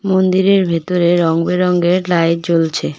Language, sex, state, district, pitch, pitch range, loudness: Bengali, female, West Bengal, Cooch Behar, 175 Hz, 165-185 Hz, -14 LUFS